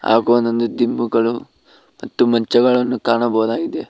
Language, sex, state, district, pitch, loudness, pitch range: Kannada, male, Karnataka, Koppal, 120 Hz, -17 LUFS, 115-120 Hz